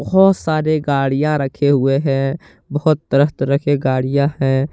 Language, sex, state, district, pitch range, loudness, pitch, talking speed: Hindi, male, Jharkhand, Deoghar, 135-155 Hz, -17 LUFS, 140 Hz, 150 wpm